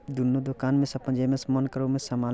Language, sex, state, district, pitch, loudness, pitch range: Bajjika, male, Bihar, Vaishali, 130 Hz, -27 LUFS, 130-135 Hz